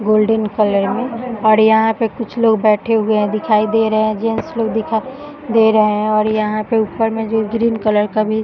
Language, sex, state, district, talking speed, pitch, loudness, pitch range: Hindi, female, Bihar, Jahanabad, 220 wpm, 220 Hz, -15 LUFS, 215-225 Hz